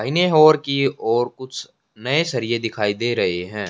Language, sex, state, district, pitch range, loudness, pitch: Hindi, male, Haryana, Jhajjar, 110-140 Hz, -19 LUFS, 120 Hz